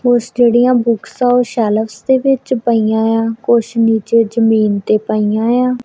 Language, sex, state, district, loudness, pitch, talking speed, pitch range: Punjabi, female, Punjab, Kapurthala, -13 LUFS, 230 Hz, 185 wpm, 220-245 Hz